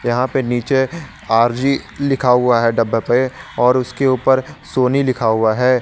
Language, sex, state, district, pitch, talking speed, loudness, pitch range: Hindi, male, Jharkhand, Garhwa, 125 Hz, 165 wpm, -16 LUFS, 120-130 Hz